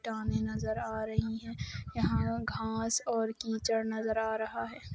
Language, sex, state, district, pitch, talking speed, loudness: Hindi, female, Chhattisgarh, Rajnandgaon, 220 Hz, 160 wpm, -34 LUFS